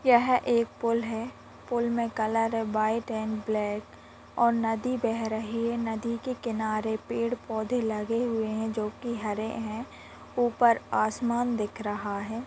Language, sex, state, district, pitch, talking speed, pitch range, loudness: Hindi, female, Bihar, Muzaffarpur, 225 Hz, 160 wpm, 220-235 Hz, -29 LUFS